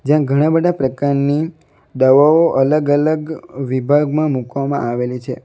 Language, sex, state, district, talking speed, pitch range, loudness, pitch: Gujarati, male, Gujarat, Valsad, 120 wpm, 130-155 Hz, -16 LUFS, 145 Hz